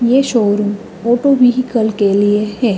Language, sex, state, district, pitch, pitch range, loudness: Hindi, female, Uttar Pradesh, Hamirpur, 225 Hz, 205-245 Hz, -14 LUFS